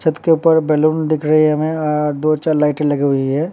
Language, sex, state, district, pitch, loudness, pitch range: Hindi, male, Uttar Pradesh, Varanasi, 155 Hz, -15 LUFS, 150-160 Hz